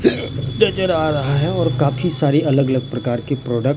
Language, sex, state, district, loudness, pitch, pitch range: Hindi, male, Bihar, Katihar, -18 LUFS, 140 Hz, 130-155 Hz